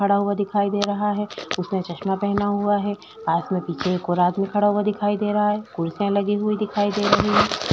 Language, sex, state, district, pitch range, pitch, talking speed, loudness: Hindi, female, Chhattisgarh, Korba, 195-205 Hz, 205 Hz, 225 wpm, -22 LUFS